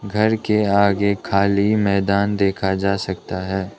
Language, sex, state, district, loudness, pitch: Hindi, male, Arunachal Pradesh, Lower Dibang Valley, -19 LUFS, 100 Hz